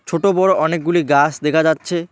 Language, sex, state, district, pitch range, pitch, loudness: Bengali, male, West Bengal, Alipurduar, 155-175 Hz, 165 Hz, -16 LUFS